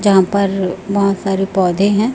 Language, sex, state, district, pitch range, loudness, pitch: Hindi, female, Chhattisgarh, Raipur, 190-200 Hz, -15 LUFS, 195 Hz